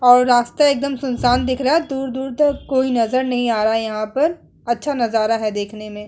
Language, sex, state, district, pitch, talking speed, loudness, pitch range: Hindi, female, Uttar Pradesh, Muzaffarnagar, 250 Hz, 205 wpm, -18 LUFS, 225-270 Hz